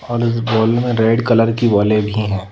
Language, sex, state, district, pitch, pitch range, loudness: Hindi, female, Madhya Pradesh, Bhopal, 115 Hz, 105-115 Hz, -15 LUFS